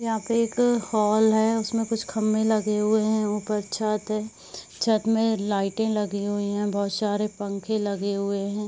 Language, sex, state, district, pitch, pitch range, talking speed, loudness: Hindi, female, Bihar, Saharsa, 215 Hz, 205-220 Hz, 180 wpm, -25 LUFS